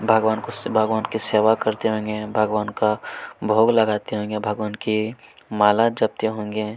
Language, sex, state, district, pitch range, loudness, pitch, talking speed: Hindi, male, Chhattisgarh, Kabirdham, 105-110 Hz, -21 LUFS, 110 Hz, 150 wpm